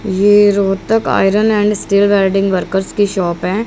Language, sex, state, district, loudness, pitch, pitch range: Hindi, female, Haryana, Rohtak, -13 LUFS, 200 Hz, 190-205 Hz